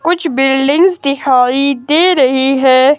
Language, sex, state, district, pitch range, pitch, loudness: Hindi, female, Himachal Pradesh, Shimla, 265-315 Hz, 275 Hz, -11 LUFS